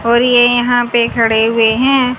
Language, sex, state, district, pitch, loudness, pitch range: Hindi, female, Haryana, Jhajjar, 240 Hz, -11 LUFS, 230-245 Hz